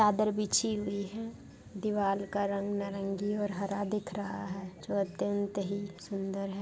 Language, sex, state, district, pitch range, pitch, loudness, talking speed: Hindi, female, Bihar, Darbhanga, 195-210 Hz, 200 Hz, -34 LUFS, 165 wpm